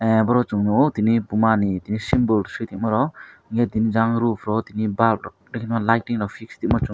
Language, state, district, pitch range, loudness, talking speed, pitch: Kokborok, Tripura, West Tripura, 105-115 Hz, -21 LUFS, 225 wpm, 110 Hz